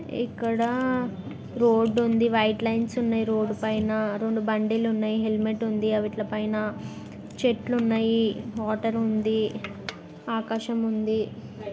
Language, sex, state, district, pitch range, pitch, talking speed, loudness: Telugu, female, Telangana, Karimnagar, 215-230 Hz, 225 Hz, 110 wpm, -26 LUFS